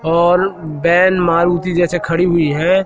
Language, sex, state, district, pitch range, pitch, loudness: Hindi, male, Madhya Pradesh, Katni, 165-180 Hz, 175 Hz, -14 LUFS